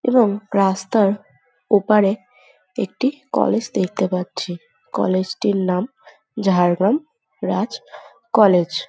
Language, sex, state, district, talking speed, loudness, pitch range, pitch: Bengali, female, West Bengal, Jhargram, 95 wpm, -19 LUFS, 180-220 Hz, 195 Hz